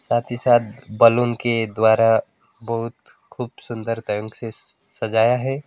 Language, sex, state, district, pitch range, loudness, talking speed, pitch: Hindi, male, West Bengal, Alipurduar, 110-120 Hz, -20 LUFS, 125 wpm, 115 Hz